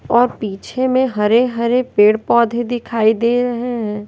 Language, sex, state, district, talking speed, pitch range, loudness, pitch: Hindi, female, Bihar, West Champaran, 160 wpm, 220-245 Hz, -16 LUFS, 235 Hz